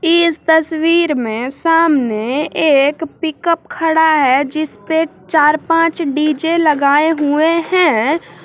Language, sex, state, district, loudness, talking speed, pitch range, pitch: Hindi, female, Jharkhand, Garhwa, -14 LUFS, 105 wpm, 290-330 Hz, 315 Hz